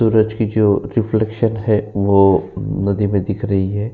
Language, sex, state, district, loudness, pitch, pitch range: Hindi, male, Uttar Pradesh, Jyotiba Phule Nagar, -17 LUFS, 105 Hz, 100-110 Hz